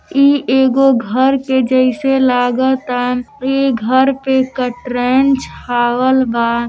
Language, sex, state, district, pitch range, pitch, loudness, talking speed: Hindi, female, Uttar Pradesh, Deoria, 245-265 Hz, 260 Hz, -14 LUFS, 115 wpm